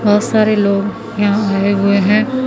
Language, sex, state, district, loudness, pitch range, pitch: Hindi, female, Madhya Pradesh, Umaria, -14 LUFS, 200-215 Hz, 205 Hz